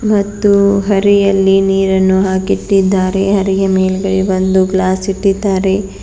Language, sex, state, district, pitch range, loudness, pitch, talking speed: Kannada, female, Karnataka, Bidar, 190-200 Hz, -12 LUFS, 195 Hz, 90 wpm